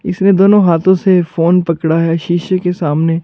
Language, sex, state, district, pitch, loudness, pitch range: Hindi, male, Chandigarh, Chandigarh, 175 Hz, -12 LUFS, 165-185 Hz